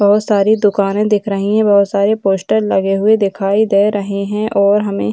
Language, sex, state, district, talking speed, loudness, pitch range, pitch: Hindi, female, Bihar, Gaya, 210 wpm, -14 LUFS, 200-210 Hz, 205 Hz